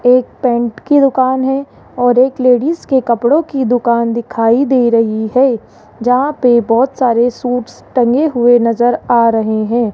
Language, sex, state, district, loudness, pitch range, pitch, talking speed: Hindi, female, Rajasthan, Jaipur, -13 LUFS, 235-260 Hz, 245 Hz, 165 wpm